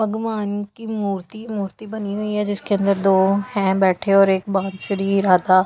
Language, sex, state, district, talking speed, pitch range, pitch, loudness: Hindi, female, Delhi, New Delhi, 170 wpm, 195-210 Hz, 200 Hz, -20 LUFS